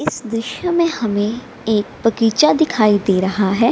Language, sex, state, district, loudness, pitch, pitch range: Hindi, female, Bihar, Gaya, -17 LUFS, 225 Hz, 205-250 Hz